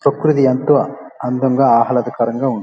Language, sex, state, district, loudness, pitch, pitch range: Telugu, male, Andhra Pradesh, Guntur, -15 LUFS, 130 Hz, 120-135 Hz